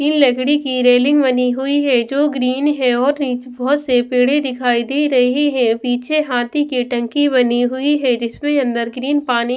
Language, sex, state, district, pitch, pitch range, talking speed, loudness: Hindi, female, Maharashtra, Washim, 255 Hz, 245-285 Hz, 190 wpm, -16 LUFS